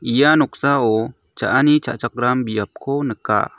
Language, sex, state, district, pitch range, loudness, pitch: Garo, male, Meghalaya, South Garo Hills, 120-140 Hz, -18 LUFS, 125 Hz